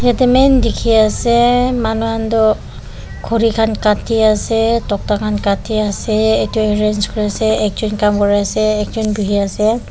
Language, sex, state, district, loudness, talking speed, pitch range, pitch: Nagamese, female, Nagaland, Dimapur, -15 LUFS, 150 wpm, 210-225 Hz, 220 Hz